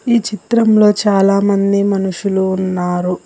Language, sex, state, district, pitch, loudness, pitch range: Telugu, female, Telangana, Hyderabad, 200 Hz, -14 LUFS, 190-210 Hz